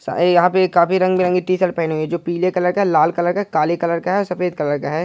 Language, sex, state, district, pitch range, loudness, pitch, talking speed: Hindi, male, Uttar Pradesh, Jyotiba Phule Nagar, 170-185 Hz, -17 LUFS, 175 Hz, 285 wpm